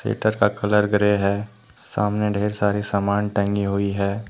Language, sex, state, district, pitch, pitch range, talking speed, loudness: Hindi, male, Jharkhand, Deoghar, 105 Hz, 100-105 Hz, 155 wpm, -21 LUFS